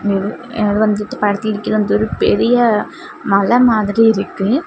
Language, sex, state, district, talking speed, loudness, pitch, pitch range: Tamil, female, Tamil Nadu, Kanyakumari, 90 wpm, -15 LUFS, 215 Hz, 205-225 Hz